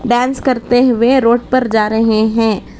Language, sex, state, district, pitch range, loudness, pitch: Hindi, female, Karnataka, Bangalore, 225-250 Hz, -13 LUFS, 240 Hz